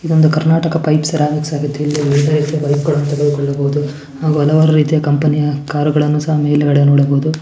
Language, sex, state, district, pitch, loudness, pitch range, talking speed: Kannada, male, Karnataka, Mysore, 150 Hz, -14 LUFS, 145-155 Hz, 160 wpm